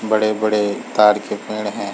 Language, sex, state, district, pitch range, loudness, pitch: Hindi, male, Chhattisgarh, Sarguja, 105-110 Hz, -18 LUFS, 105 Hz